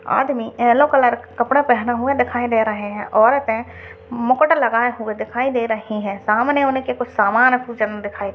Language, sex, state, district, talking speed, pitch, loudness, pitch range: Hindi, female, Uttar Pradesh, Hamirpur, 195 wpm, 240 Hz, -18 LUFS, 215-255 Hz